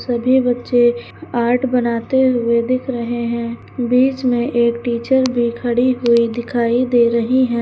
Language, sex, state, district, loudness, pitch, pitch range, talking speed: Hindi, female, Uttar Pradesh, Lucknow, -17 LUFS, 240 Hz, 235-255 Hz, 140 wpm